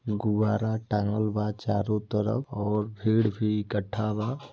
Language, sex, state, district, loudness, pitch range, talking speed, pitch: Bhojpuri, male, Bihar, Gopalganj, -28 LUFS, 105-110 Hz, 145 wpm, 105 Hz